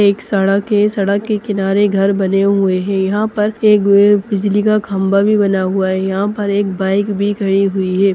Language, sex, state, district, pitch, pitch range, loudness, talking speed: Hindi, female, Bihar, East Champaran, 200 Hz, 195-205 Hz, -14 LUFS, 230 wpm